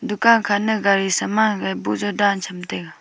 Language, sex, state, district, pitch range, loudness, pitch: Wancho, female, Arunachal Pradesh, Longding, 180-215 Hz, -19 LUFS, 205 Hz